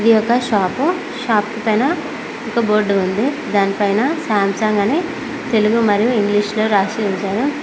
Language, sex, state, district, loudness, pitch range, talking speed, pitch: Telugu, female, Telangana, Mahabubabad, -17 LUFS, 205-265 Hz, 140 wpm, 220 Hz